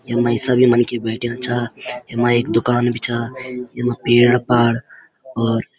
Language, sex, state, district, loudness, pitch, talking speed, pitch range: Garhwali, male, Uttarakhand, Uttarkashi, -17 LUFS, 120 Hz, 155 wpm, 120-125 Hz